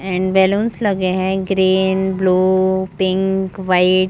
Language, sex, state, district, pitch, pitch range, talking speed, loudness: Hindi, female, Jharkhand, Jamtara, 190 Hz, 185-190 Hz, 130 wpm, -16 LUFS